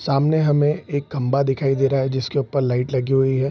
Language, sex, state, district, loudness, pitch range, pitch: Hindi, male, Bihar, Araria, -20 LUFS, 135-145 Hz, 135 Hz